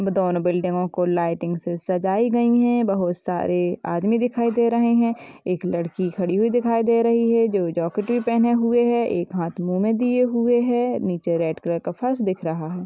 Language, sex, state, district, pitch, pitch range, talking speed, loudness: Hindi, female, Uttar Pradesh, Hamirpur, 195 Hz, 175-235 Hz, 210 wpm, -21 LUFS